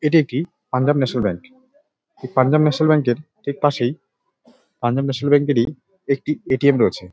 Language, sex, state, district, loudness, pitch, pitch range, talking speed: Bengali, male, West Bengal, Dakshin Dinajpur, -19 LUFS, 145 Hz, 130-155 Hz, 170 wpm